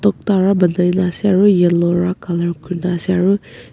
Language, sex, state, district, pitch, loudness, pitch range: Nagamese, female, Nagaland, Kohima, 180 Hz, -16 LUFS, 175-190 Hz